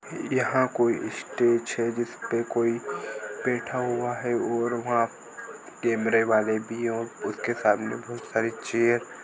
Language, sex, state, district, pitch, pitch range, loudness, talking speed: Hindi, male, Goa, North and South Goa, 115 Hz, 115-120 Hz, -27 LUFS, 135 wpm